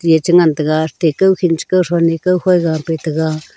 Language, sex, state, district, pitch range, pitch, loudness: Wancho, female, Arunachal Pradesh, Longding, 160-175 Hz, 165 Hz, -14 LUFS